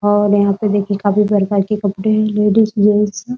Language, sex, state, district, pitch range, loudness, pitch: Hindi, female, Bihar, Muzaffarpur, 200-210 Hz, -15 LUFS, 205 Hz